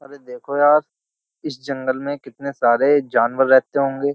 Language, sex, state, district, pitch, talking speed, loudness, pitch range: Hindi, male, Uttar Pradesh, Jyotiba Phule Nagar, 140 Hz, 145 wpm, -18 LUFS, 130-145 Hz